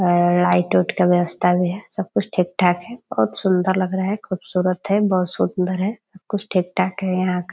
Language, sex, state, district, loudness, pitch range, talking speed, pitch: Hindi, female, Bihar, Purnia, -20 LUFS, 175-190 Hz, 230 wpm, 185 Hz